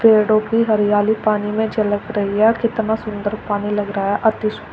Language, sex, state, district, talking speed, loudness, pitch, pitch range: Hindi, female, Uttar Pradesh, Shamli, 205 wpm, -18 LUFS, 215 Hz, 205-220 Hz